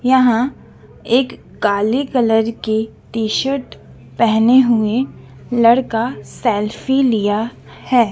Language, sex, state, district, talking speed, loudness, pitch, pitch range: Hindi, female, Madhya Pradesh, Dhar, 95 wpm, -17 LUFS, 230 Hz, 220-250 Hz